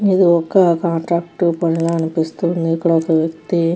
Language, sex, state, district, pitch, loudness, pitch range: Telugu, female, Andhra Pradesh, Krishna, 170 Hz, -17 LUFS, 165-170 Hz